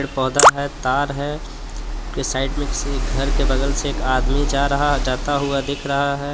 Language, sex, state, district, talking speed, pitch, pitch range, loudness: Hindi, male, Jharkhand, Palamu, 210 wpm, 140 Hz, 135-140 Hz, -19 LUFS